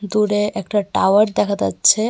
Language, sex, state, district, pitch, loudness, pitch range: Bengali, female, Tripura, West Tripura, 205 Hz, -17 LUFS, 185-210 Hz